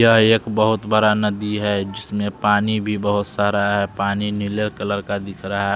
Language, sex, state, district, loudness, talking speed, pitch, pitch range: Hindi, male, Bihar, West Champaran, -20 LUFS, 195 wpm, 105 Hz, 100-105 Hz